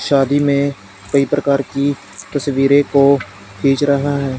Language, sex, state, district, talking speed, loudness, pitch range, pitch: Hindi, male, Punjab, Fazilka, 135 wpm, -16 LUFS, 135-140 Hz, 140 Hz